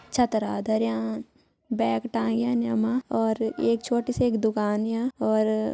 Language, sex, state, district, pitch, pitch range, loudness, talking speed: Garhwali, female, Uttarakhand, Uttarkashi, 225 Hz, 215-235 Hz, -26 LUFS, 155 wpm